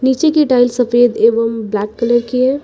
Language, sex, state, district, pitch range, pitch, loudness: Hindi, female, Uttar Pradesh, Lucknow, 230-260 Hz, 245 Hz, -13 LUFS